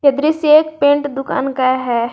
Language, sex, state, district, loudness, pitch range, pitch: Hindi, female, Jharkhand, Garhwa, -15 LUFS, 260-300 Hz, 280 Hz